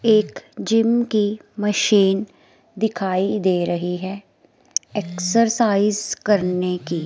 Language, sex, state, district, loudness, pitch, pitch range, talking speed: Hindi, female, Himachal Pradesh, Shimla, -20 LUFS, 205 Hz, 180-215 Hz, 95 wpm